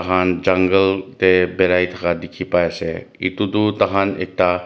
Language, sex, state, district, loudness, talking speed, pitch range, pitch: Nagamese, male, Nagaland, Dimapur, -18 LUFS, 165 wpm, 90-95 Hz, 90 Hz